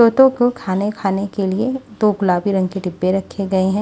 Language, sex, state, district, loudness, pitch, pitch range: Hindi, female, Haryana, Jhajjar, -18 LUFS, 195 Hz, 190-220 Hz